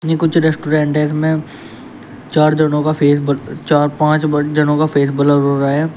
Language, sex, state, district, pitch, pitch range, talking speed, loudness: Hindi, male, Uttar Pradesh, Shamli, 150 Hz, 145-155 Hz, 200 wpm, -15 LUFS